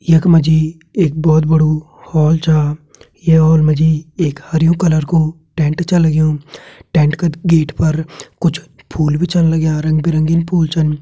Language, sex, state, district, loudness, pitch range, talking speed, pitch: Garhwali, male, Uttarakhand, Tehri Garhwal, -14 LUFS, 155-165 Hz, 175 wpm, 160 Hz